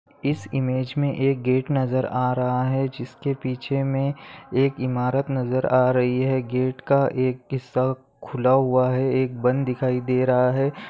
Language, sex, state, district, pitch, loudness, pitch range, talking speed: Hindi, male, Maharashtra, Aurangabad, 130 Hz, -23 LUFS, 125-135 Hz, 165 wpm